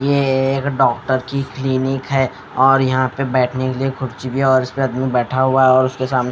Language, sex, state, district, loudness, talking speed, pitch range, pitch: Hindi, male, Haryana, Jhajjar, -17 LUFS, 230 wpm, 130-135 Hz, 130 Hz